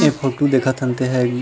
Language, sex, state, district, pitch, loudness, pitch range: Chhattisgarhi, male, Chhattisgarh, Rajnandgaon, 130 Hz, -18 LUFS, 125-135 Hz